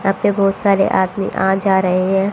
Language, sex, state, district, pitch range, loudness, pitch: Hindi, female, Haryana, Jhajjar, 190-195 Hz, -16 LUFS, 195 Hz